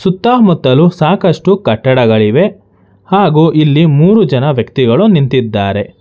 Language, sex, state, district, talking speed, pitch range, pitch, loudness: Kannada, male, Karnataka, Bangalore, 90 wpm, 130-190 Hz, 155 Hz, -10 LUFS